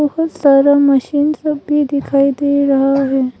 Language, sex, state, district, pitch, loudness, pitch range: Hindi, female, Arunachal Pradesh, Longding, 280 Hz, -13 LUFS, 275-295 Hz